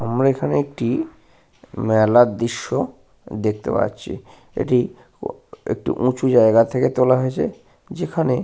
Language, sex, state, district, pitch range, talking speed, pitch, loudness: Bengali, male, West Bengal, Paschim Medinipur, 115-130 Hz, 120 wpm, 120 Hz, -19 LUFS